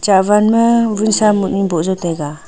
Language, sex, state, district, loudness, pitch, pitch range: Wancho, female, Arunachal Pradesh, Longding, -14 LUFS, 200 Hz, 180-215 Hz